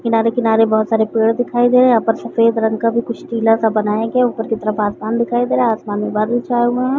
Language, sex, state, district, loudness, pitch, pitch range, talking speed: Hindi, female, Chhattisgarh, Raigarh, -16 LUFS, 225 Hz, 220-240 Hz, 310 wpm